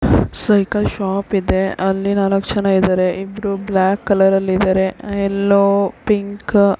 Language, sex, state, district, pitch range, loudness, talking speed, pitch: Kannada, female, Karnataka, Belgaum, 190-200 Hz, -16 LUFS, 130 wpm, 195 Hz